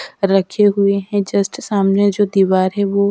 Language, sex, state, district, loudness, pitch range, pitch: Hindi, female, Haryana, Rohtak, -16 LUFS, 195-205 Hz, 200 Hz